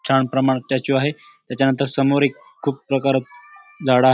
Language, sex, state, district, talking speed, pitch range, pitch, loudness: Marathi, male, Maharashtra, Dhule, 160 wpm, 135-140 Hz, 135 Hz, -20 LUFS